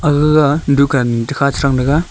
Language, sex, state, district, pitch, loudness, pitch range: Wancho, male, Arunachal Pradesh, Longding, 140 Hz, -14 LUFS, 135-150 Hz